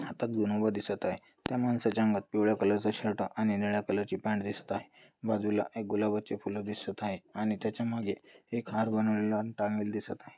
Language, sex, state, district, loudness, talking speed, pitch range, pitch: Marathi, male, Maharashtra, Dhule, -32 LUFS, 195 wpm, 105-110 Hz, 105 Hz